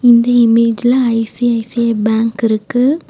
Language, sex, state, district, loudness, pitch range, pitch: Tamil, female, Tamil Nadu, Nilgiris, -13 LUFS, 225-245 Hz, 235 Hz